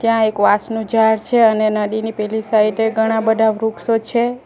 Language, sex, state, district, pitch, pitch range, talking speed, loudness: Gujarati, female, Gujarat, Valsad, 220 Hz, 215-225 Hz, 200 wpm, -16 LUFS